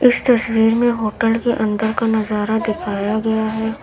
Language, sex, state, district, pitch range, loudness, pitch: Hindi, female, Uttar Pradesh, Lalitpur, 220-225 Hz, -18 LUFS, 220 Hz